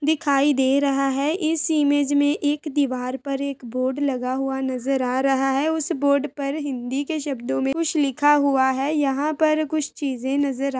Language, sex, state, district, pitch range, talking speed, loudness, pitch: Hindi, female, Uttar Pradesh, Budaun, 270-295 Hz, 195 wpm, -22 LUFS, 280 Hz